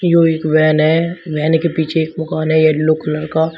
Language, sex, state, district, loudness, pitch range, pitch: Hindi, male, Uttar Pradesh, Shamli, -15 LUFS, 155-165 Hz, 160 Hz